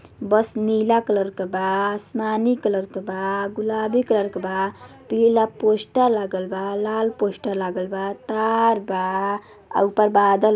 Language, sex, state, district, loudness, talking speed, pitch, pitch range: Bhojpuri, female, Uttar Pradesh, Deoria, -22 LUFS, 155 wpm, 205 Hz, 195-220 Hz